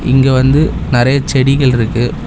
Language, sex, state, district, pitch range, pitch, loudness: Tamil, male, Tamil Nadu, Chennai, 120-135 Hz, 130 Hz, -12 LUFS